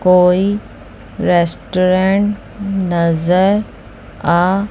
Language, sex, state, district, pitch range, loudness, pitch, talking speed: Hindi, female, Chandigarh, Chandigarh, 170-195 Hz, -15 LUFS, 185 Hz, 50 wpm